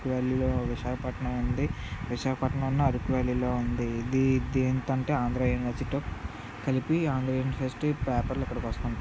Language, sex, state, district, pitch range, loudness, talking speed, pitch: Telugu, male, Andhra Pradesh, Visakhapatnam, 120-130 Hz, -29 LUFS, 105 wpm, 130 Hz